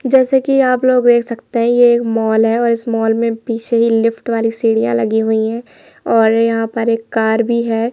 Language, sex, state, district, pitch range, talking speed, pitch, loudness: Hindi, male, Madhya Pradesh, Bhopal, 225-235 Hz, 210 wpm, 230 Hz, -14 LUFS